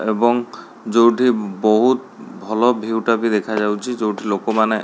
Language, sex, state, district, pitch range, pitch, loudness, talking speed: Odia, male, Odisha, Khordha, 110-120 Hz, 110 Hz, -18 LUFS, 160 wpm